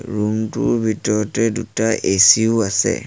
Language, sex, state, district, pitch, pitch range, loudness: Assamese, male, Assam, Sonitpur, 110 Hz, 105-115 Hz, -17 LUFS